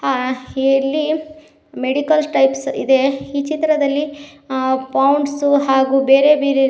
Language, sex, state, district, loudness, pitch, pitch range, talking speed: Kannada, female, Karnataka, Koppal, -16 LUFS, 280 Hz, 270-295 Hz, 115 wpm